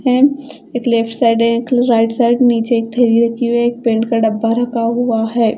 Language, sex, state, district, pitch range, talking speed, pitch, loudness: Hindi, female, Punjab, Fazilka, 230-245 Hz, 235 wpm, 235 Hz, -14 LUFS